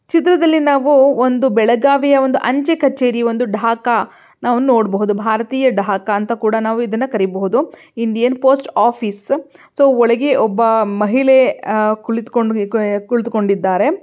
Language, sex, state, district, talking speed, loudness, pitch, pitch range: Kannada, female, Karnataka, Belgaum, 110 wpm, -15 LUFS, 235 Hz, 220-265 Hz